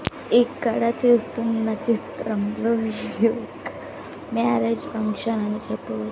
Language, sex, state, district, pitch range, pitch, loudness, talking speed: Telugu, female, Andhra Pradesh, Sri Satya Sai, 210-230 Hz, 225 Hz, -23 LUFS, 70 wpm